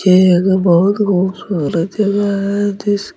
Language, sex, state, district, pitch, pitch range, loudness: Hindi, male, Delhi, New Delhi, 195 Hz, 185-205 Hz, -14 LUFS